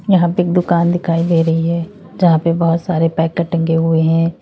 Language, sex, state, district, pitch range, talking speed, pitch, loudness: Hindi, female, Uttar Pradesh, Lalitpur, 165-175 Hz, 215 wpm, 170 Hz, -15 LUFS